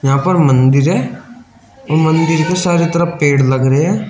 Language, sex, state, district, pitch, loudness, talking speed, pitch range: Hindi, male, Uttar Pradesh, Shamli, 160 Hz, -13 LUFS, 175 wpm, 140-175 Hz